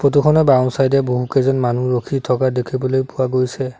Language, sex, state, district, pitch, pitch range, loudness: Assamese, male, Assam, Sonitpur, 130 Hz, 125-135 Hz, -17 LUFS